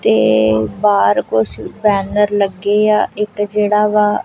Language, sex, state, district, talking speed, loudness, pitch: Punjabi, female, Punjab, Kapurthala, 115 wpm, -14 LUFS, 205 Hz